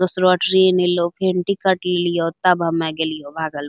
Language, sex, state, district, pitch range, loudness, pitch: Angika, female, Bihar, Bhagalpur, 165-185 Hz, -18 LUFS, 180 Hz